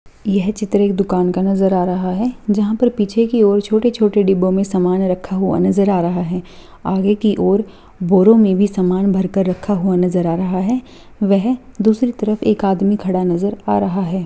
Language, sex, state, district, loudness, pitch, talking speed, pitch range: Hindi, female, Bihar, Bhagalpur, -16 LUFS, 195 Hz, 210 wpm, 185-210 Hz